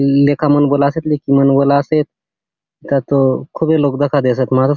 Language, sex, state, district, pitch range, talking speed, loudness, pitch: Halbi, male, Chhattisgarh, Bastar, 140-145 Hz, 200 wpm, -14 LUFS, 140 Hz